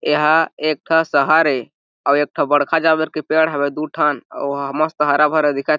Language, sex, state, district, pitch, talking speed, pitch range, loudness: Chhattisgarhi, male, Chhattisgarh, Jashpur, 150 Hz, 230 wpm, 145-160 Hz, -17 LUFS